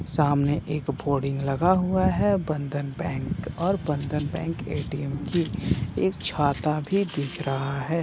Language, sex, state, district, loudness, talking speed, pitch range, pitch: Hindi, male, Bihar, Sitamarhi, -26 LUFS, 150 wpm, 140-165 Hz, 145 Hz